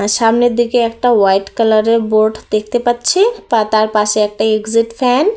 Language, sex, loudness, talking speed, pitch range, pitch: Bengali, female, -13 LUFS, 180 wpm, 215-240 Hz, 225 Hz